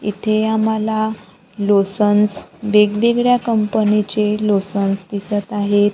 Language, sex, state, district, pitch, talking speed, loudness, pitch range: Marathi, female, Maharashtra, Gondia, 210 Hz, 90 wpm, -17 LUFS, 205-220 Hz